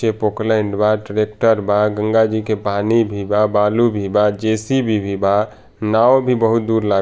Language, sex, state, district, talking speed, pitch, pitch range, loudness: Bhojpuri, male, Bihar, Saran, 195 wpm, 110 Hz, 105-110 Hz, -17 LUFS